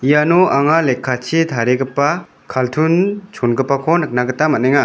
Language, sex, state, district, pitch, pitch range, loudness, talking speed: Garo, male, Meghalaya, West Garo Hills, 145 Hz, 130-165 Hz, -16 LUFS, 110 wpm